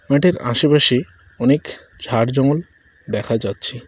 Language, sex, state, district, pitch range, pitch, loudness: Bengali, male, West Bengal, Cooch Behar, 115-145 Hz, 125 Hz, -17 LUFS